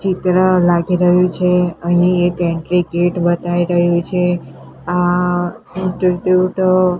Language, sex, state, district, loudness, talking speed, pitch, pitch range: Gujarati, female, Gujarat, Gandhinagar, -15 LUFS, 120 wpm, 180 Hz, 175-180 Hz